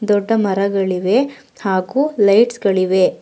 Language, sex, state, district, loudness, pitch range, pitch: Kannada, female, Karnataka, Bangalore, -16 LUFS, 190-225 Hz, 200 Hz